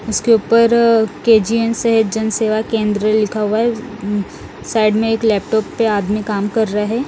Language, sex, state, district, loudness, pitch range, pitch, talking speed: Hindi, male, Odisha, Nuapada, -16 LUFS, 210-230 Hz, 220 Hz, 180 wpm